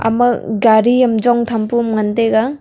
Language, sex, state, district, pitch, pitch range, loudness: Wancho, female, Arunachal Pradesh, Longding, 230 Hz, 220-240 Hz, -14 LUFS